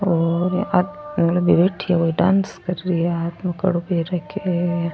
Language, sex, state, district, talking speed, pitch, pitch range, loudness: Rajasthani, female, Rajasthan, Churu, 180 wpm, 175 Hz, 170-185 Hz, -20 LUFS